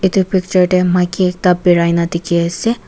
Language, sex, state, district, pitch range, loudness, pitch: Nagamese, female, Nagaland, Kohima, 170-185 Hz, -14 LUFS, 180 Hz